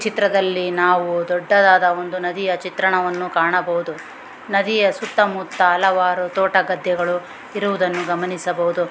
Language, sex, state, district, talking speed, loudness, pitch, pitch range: Kannada, female, Karnataka, Gulbarga, 100 wpm, -18 LUFS, 180 Hz, 175-190 Hz